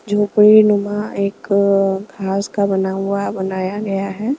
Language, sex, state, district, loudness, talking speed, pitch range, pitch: Hindi, female, Maharashtra, Mumbai Suburban, -17 LUFS, 165 wpm, 195-205 Hz, 200 Hz